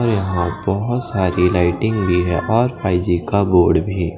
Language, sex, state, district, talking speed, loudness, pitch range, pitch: Hindi, male, Odisha, Khordha, 185 wpm, -17 LUFS, 90-105 Hz, 95 Hz